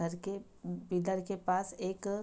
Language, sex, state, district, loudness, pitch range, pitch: Hindi, female, Bihar, Saharsa, -37 LUFS, 180-200 Hz, 190 Hz